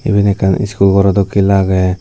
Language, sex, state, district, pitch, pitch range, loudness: Chakma, male, Tripura, Dhalai, 100 Hz, 95-100 Hz, -12 LUFS